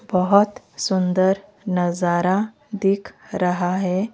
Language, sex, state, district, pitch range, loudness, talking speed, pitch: Hindi, female, Odisha, Malkangiri, 180-205 Hz, -21 LUFS, 85 wpm, 190 Hz